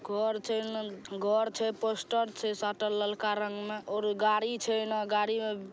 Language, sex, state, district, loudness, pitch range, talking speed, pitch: Maithili, female, Bihar, Saharsa, -31 LUFS, 210-220 Hz, 155 wpm, 215 Hz